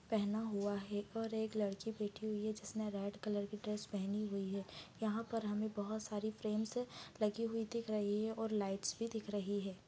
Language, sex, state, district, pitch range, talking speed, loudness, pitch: Hindi, female, Chhattisgarh, Bastar, 205-220 Hz, 205 wpm, -41 LUFS, 210 Hz